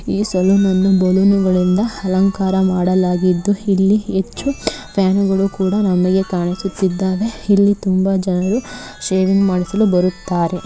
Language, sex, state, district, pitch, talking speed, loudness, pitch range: Kannada, female, Karnataka, Mysore, 190 Hz, 100 wpm, -16 LUFS, 185-200 Hz